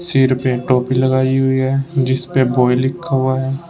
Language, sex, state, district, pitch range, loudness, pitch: Hindi, male, Uttar Pradesh, Shamli, 130-135 Hz, -16 LUFS, 130 Hz